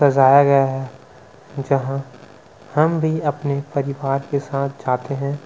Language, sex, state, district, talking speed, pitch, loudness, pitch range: Hindi, male, Chhattisgarh, Sukma, 130 wpm, 140 Hz, -19 LUFS, 135-140 Hz